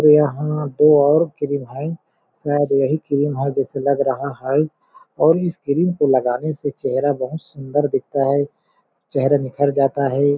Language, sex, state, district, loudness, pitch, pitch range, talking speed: Hindi, male, Chhattisgarh, Balrampur, -19 LUFS, 145 Hz, 140-150 Hz, 160 wpm